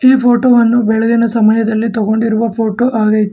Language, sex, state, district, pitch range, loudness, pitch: Kannada, male, Karnataka, Bangalore, 220-235 Hz, -12 LUFS, 225 Hz